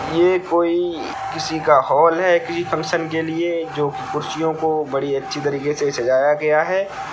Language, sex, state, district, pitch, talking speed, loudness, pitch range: Hindi, male, Bihar, Sitamarhi, 160 Hz, 170 wpm, -19 LUFS, 150-170 Hz